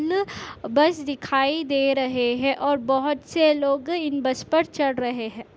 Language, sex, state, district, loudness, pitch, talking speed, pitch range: Hindi, female, Chhattisgarh, Bastar, -23 LUFS, 280 Hz, 160 wpm, 265-305 Hz